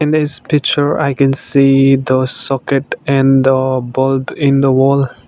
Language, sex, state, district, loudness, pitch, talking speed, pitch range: English, male, Nagaland, Dimapur, -13 LUFS, 135 Hz, 160 wpm, 135-140 Hz